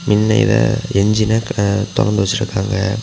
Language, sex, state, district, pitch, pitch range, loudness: Tamil, male, Tamil Nadu, Kanyakumari, 105 Hz, 100-115 Hz, -16 LUFS